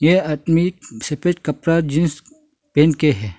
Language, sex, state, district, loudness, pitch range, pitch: Hindi, male, Arunachal Pradesh, Longding, -18 LUFS, 150-175 Hz, 160 Hz